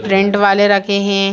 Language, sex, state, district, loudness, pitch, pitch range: Hindi, female, Bihar, Gaya, -13 LUFS, 200 Hz, 195-205 Hz